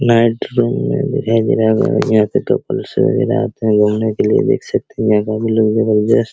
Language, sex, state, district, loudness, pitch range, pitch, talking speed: Hindi, male, Bihar, Araria, -15 LUFS, 110-115 Hz, 110 Hz, 135 wpm